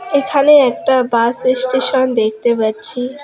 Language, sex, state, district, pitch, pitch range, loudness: Bengali, female, West Bengal, Alipurduar, 255 Hz, 235-270 Hz, -14 LUFS